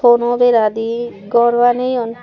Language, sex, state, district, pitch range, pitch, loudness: Chakma, female, Tripura, Dhalai, 235-245 Hz, 240 Hz, -15 LUFS